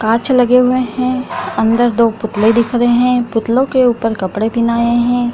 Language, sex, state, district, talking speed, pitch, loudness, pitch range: Hindi, female, Bihar, Kishanganj, 180 wpm, 240 Hz, -13 LUFS, 225-250 Hz